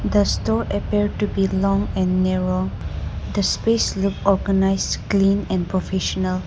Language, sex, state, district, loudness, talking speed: English, female, Nagaland, Dimapur, -21 LUFS, 140 wpm